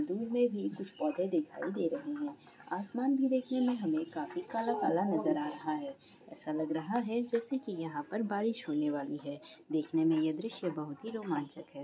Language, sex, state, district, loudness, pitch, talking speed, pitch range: Hindi, female, Bihar, Kishanganj, -35 LUFS, 200 Hz, 205 wpm, 155-245 Hz